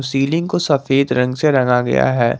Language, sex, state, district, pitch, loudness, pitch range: Hindi, male, Jharkhand, Garhwa, 135 Hz, -16 LUFS, 125-145 Hz